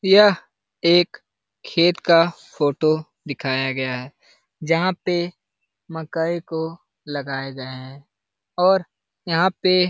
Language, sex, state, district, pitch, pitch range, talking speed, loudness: Hindi, male, Bihar, Lakhisarai, 160 Hz, 130-175 Hz, 115 wpm, -21 LUFS